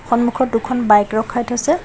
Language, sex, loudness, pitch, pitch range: Assamese, female, -17 LUFS, 240 Hz, 225-255 Hz